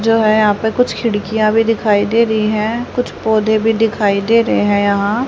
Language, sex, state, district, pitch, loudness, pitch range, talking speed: Hindi, female, Haryana, Rohtak, 220 Hz, -14 LUFS, 210-225 Hz, 215 wpm